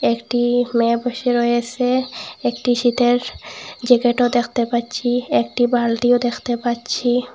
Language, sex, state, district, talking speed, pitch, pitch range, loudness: Bengali, female, Assam, Hailakandi, 105 wpm, 245 Hz, 240-245 Hz, -18 LUFS